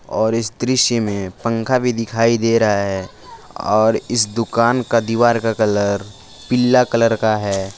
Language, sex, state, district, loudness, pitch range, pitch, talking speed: Hindi, male, Jharkhand, Palamu, -17 LUFS, 105-120 Hz, 115 Hz, 170 wpm